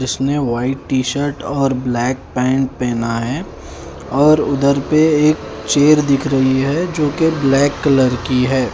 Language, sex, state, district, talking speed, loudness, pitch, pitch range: Hindi, male, Haryana, Charkhi Dadri, 150 wpm, -16 LUFS, 135 Hz, 125-145 Hz